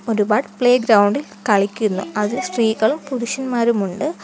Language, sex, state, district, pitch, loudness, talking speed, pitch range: Malayalam, female, Kerala, Kollam, 225 Hz, -18 LUFS, 125 wpm, 210-250 Hz